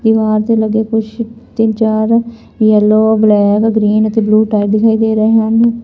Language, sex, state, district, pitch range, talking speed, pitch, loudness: Punjabi, female, Punjab, Fazilka, 215-225 Hz, 165 wpm, 220 Hz, -12 LUFS